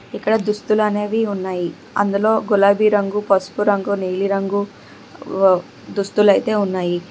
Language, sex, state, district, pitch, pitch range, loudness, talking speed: Telugu, female, Telangana, Hyderabad, 200 Hz, 195-210 Hz, -18 LUFS, 100 wpm